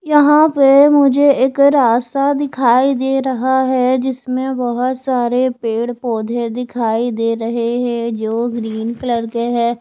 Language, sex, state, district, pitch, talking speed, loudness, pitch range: Hindi, female, Punjab, Fazilka, 250 Hz, 140 wpm, -15 LUFS, 235-265 Hz